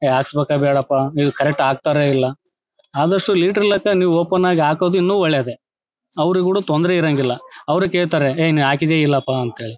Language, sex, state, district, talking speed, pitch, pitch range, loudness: Kannada, male, Karnataka, Bellary, 145 wpm, 150 Hz, 140-180 Hz, -17 LUFS